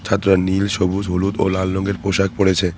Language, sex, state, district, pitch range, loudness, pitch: Bengali, male, West Bengal, Cooch Behar, 95-100 Hz, -18 LUFS, 95 Hz